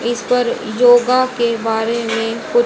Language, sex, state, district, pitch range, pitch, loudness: Hindi, female, Haryana, Jhajjar, 225-250 Hz, 240 Hz, -15 LUFS